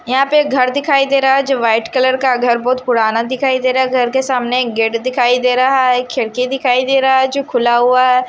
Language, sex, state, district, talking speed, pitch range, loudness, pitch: Hindi, male, Odisha, Nuapada, 265 wpm, 245-265 Hz, -14 LUFS, 255 Hz